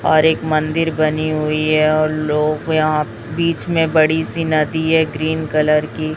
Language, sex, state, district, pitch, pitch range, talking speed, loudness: Hindi, female, Chhattisgarh, Raipur, 155 Hz, 155-160 Hz, 175 wpm, -17 LUFS